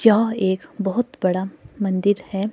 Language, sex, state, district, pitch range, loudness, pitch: Hindi, female, Himachal Pradesh, Shimla, 190-220 Hz, -22 LUFS, 200 Hz